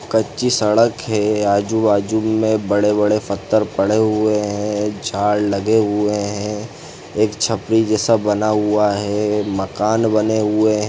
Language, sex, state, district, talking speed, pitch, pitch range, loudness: Hindi, male, Chhattisgarh, Sarguja, 130 wpm, 105 Hz, 105-110 Hz, -17 LUFS